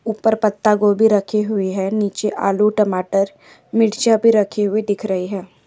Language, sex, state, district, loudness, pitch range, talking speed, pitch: Hindi, female, Maharashtra, Chandrapur, -17 LUFS, 195-215 Hz, 160 wpm, 210 Hz